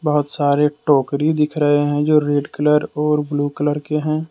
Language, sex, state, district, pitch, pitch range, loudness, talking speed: Hindi, male, Jharkhand, Deoghar, 150 Hz, 145-150 Hz, -18 LUFS, 195 wpm